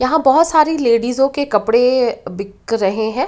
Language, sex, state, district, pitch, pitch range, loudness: Hindi, female, Uttar Pradesh, Ghazipur, 245 Hz, 220-270 Hz, -15 LUFS